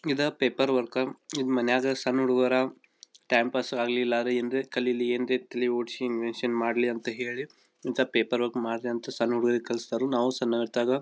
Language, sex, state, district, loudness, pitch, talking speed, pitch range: Kannada, male, Karnataka, Belgaum, -28 LUFS, 125 Hz, 170 wpm, 120-130 Hz